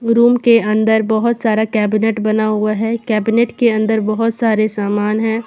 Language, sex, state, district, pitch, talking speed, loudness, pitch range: Hindi, female, Jharkhand, Garhwa, 220 Hz, 175 wpm, -15 LUFS, 215-230 Hz